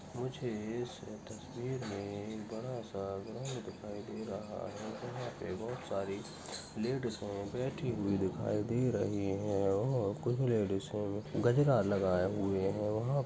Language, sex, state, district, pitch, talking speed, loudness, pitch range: Hindi, male, Chhattisgarh, Bastar, 105 Hz, 155 wpm, -36 LUFS, 100-120 Hz